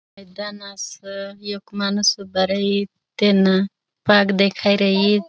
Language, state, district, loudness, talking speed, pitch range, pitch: Bhili, Maharashtra, Dhule, -19 LUFS, 135 wpm, 195-205 Hz, 200 Hz